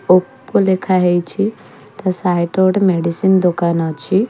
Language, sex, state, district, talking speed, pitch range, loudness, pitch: Odia, female, Odisha, Khordha, 140 wpm, 175-190 Hz, -16 LUFS, 185 Hz